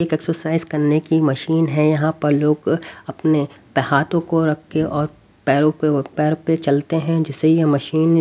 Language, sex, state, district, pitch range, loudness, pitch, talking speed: Hindi, male, Haryana, Rohtak, 150-160 Hz, -19 LUFS, 155 Hz, 180 wpm